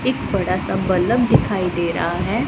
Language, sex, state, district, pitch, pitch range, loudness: Hindi, female, Punjab, Pathankot, 190 Hz, 175-240 Hz, -19 LUFS